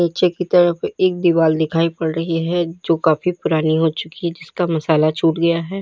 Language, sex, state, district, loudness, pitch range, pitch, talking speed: Hindi, female, Uttar Pradesh, Lalitpur, -18 LUFS, 160-175 Hz, 165 Hz, 205 wpm